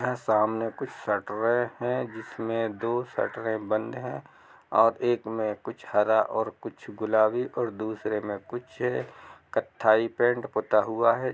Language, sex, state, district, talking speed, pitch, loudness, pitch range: Hindi, male, Bihar, East Champaran, 150 wpm, 115 Hz, -27 LUFS, 110-120 Hz